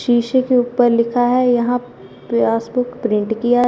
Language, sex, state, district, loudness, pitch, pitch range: Hindi, female, Punjab, Fazilka, -17 LUFS, 245 Hz, 230-245 Hz